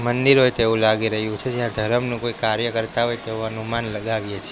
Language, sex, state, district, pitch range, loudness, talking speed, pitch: Gujarati, male, Gujarat, Gandhinagar, 110-120 Hz, -20 LUFS, 210 wpm, 115 Hz